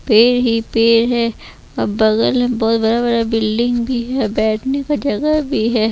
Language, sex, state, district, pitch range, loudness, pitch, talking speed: Hindi, female, Chhattisgarh, Raipur, 225-245 Hz, -16 LUFS, 230 Hz, 170 wpm